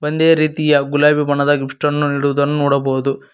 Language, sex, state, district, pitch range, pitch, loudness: Kannada, male, Karnataka, Koppal, 140-150 Hz, 145 Hz, -15 LUFS